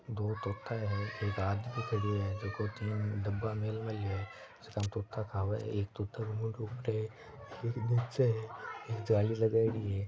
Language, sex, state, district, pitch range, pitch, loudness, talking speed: Marwari, male, Rajasthan, Nagaur, 105-115 Hz, 110 Hz, -36 LUFS, 180 wpm